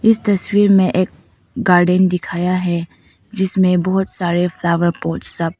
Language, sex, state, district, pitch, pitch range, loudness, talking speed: Hindi, female, Arunachal Pradesh, Papum Pare, 180 Hz, 175-190 Hz, -15 LUFS, 140 wpm